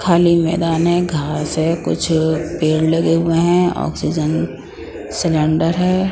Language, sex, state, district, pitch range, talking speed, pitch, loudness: Hindi, female, Punjab, Pathankot, 160-170 Hz, 125 wpm, 165 Hz, -17 LUFS